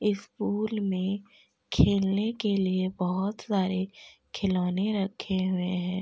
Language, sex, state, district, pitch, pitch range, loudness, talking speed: Hindi, female, Bihar, Gopalganj, 195 Hz, 185-205 Hz, -28 LUFS, 120 wpm